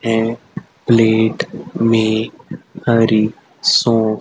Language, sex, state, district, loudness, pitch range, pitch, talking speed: Hindi, male, Haryana, Rohtak, -15 LUFS, 110-115 Hz, 115 Hz, 70 wpm